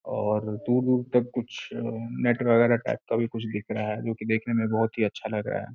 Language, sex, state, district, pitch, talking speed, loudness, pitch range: Hindi, male, Uttar Pradesh, Gorakhpur, 115 Hz, 260 wpm, -27 LUFS, 110-120 Hz